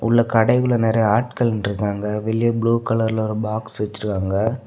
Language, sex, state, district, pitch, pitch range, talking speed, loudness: Tamil, male, Tamil Nadu, Kanyakumari, 110 Hz, 105-115 Hz, 155 wpm, -20 LUFS